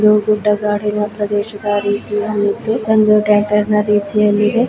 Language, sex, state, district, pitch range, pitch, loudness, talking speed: Kannada, female, Karnataka, Bellary, 205-210 Hz, 210 Hz, -15 LUFS, 140 wpm